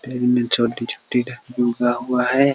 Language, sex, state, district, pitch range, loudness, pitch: Hindi, male, Bihar, Muzaffarpur, 120-125 Hz, -20 LUFS, 125 Hz